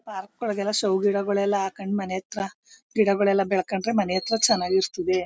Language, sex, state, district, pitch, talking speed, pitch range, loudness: Kannada, female, Karnataka, Mysore, 200 Hz, 115 wpm, 190-210 Hz, -24 LUFS